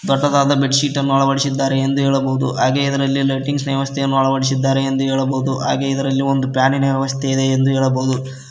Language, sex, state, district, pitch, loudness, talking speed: Kannada, male, Karnataka, Koppal, 135 Hz, -17 LUFS, 155 wpm